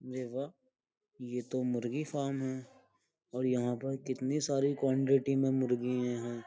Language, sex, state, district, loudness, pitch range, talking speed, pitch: Hindi, male, Uttar Pradesh, Jyotiba Phule Nagar, -34 LUFS, 125-140 Hz, 140 wpm, 130 Hz